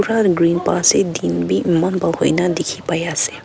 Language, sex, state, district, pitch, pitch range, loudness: Nagamese, female, Nagaland, Kohima, 170 Hz, 160-180 Hz, -17 LUFS